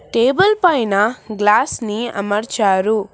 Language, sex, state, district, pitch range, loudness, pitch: Telugu, female, Telangana, Hyderabad, 205-240 Hz, -16 LUFS, 215 Hz